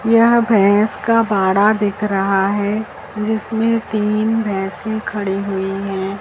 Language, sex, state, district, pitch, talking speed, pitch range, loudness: Hindi, male, Madhya Pradesh, Dhar, 210 Hz, 125 wpm, 195-220 Hz, -17 LUFS